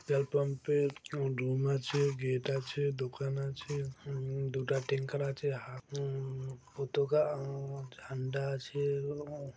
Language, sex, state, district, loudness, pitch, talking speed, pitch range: Bengali, male, West Bengal, Dakshin Dinajpur, -35 LUFS, 140 Hz, 125 wpm, 135-140 Hz